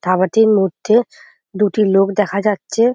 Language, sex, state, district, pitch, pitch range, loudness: Bengali, female, West Bengal, Jhargram, 210 Hz, 195-215 Hz, -15 LUFS